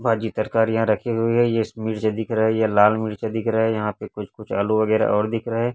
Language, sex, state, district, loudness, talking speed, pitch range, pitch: Hindi, male, Chhattisgarh, Raipur, -21 LUFS, 280 wpm, 110-115 Hz, 110 Hz